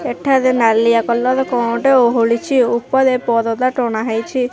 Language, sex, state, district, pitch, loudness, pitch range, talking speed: Odia, male, Odisha, Khordha, 240 Hz, -15 LUFS, 230-255 Hz, 135 wpm